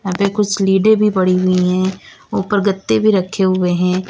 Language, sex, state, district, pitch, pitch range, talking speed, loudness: Hindi, female, Uttar Pradesh, Lalitpur, 190 Hz, 185-200 Hz, 205 wpm, -15 LUFS